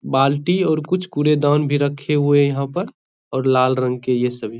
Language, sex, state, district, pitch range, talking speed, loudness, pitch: Hindi, male, Bihar, Bhagalpur, 130-150 Hz, 210 wpm, -19 LUFS, 145 Hz